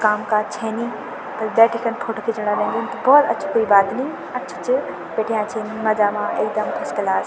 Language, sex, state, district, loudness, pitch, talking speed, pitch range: Garhwali, female, Uttarakhand, Tehri Garhwal, -20 LUFS, 220 Hz, 200 wpm, 210-230 Hz